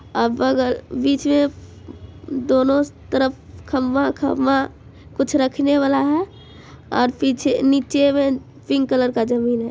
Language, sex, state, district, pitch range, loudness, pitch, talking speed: Maithili, female, Bihar, Supaul, 260-280 Hz, -19 LUFS, 270 Hz, 125 wpm